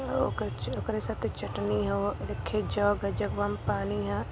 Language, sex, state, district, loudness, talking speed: Hindi, female, Uttar Pradesh, Varanasi, -31 LUFS, 180 wpm